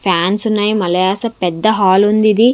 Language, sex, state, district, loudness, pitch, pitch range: Telugu, female, Andhra Pradesh, Sri Satya Sai, -13 LUFS, 210 Hz, 185-220 Hz